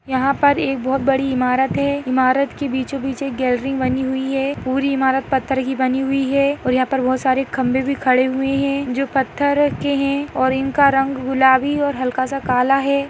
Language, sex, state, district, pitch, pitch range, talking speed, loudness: Hindi, female, Maharashtra, Aurangabad, 270 Hz, 260-275 Hz, 205 wpm, -18 LUFS